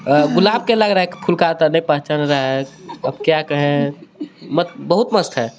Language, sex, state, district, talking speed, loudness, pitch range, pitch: Hindi, male, Jharkhand, Garhwa, 205 wpm, -17 LUFS, 145-185 Hz, 155 Hz